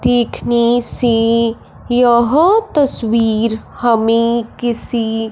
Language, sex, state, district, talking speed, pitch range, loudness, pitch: Hindi, male, Punjab, Fazilka, 80 wpm, 230-245 Hz, -14 LUFS, 235 Hz